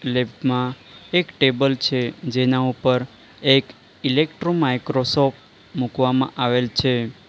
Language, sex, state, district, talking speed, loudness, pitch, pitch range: Gujarati, male, Gujarat, Valsad, 105 wpm, -21 LUFS, 130 Hz, 125-135 Hz